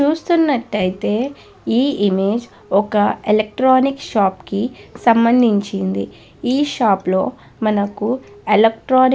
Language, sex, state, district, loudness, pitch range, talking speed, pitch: Telugu, female, Andhra Pradesh, Guntur, -17 LUFS, 200-255 Hz, 90 wpm, 215 Hz